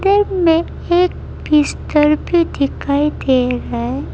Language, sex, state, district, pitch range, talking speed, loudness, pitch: Hindi, female, Arunachal Pradesh, Lower Dibang Valley, 280-345 Hz, 115 wpm, -16 LUFS, 300 Hz